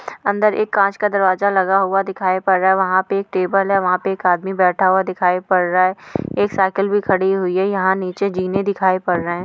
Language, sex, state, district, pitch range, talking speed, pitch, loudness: Hindi, female, Uttar Pradesh, Deoria, 185-195 Hz, 255 wpm, 190 Hz, -17 LUFS